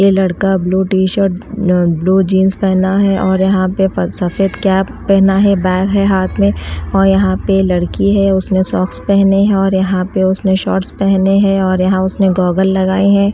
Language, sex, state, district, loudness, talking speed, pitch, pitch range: Hindi, female, Maharashtra, Washim, -13 LUFS, 190 wpm, 190 Hz, 185-195 Hz